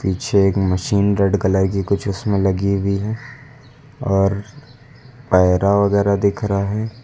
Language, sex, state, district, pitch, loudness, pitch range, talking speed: Hindi, male, Uttar Pradesh, Lucknow, 100 Hz, -18 LUFS, 95-120 Hz, 145 wpm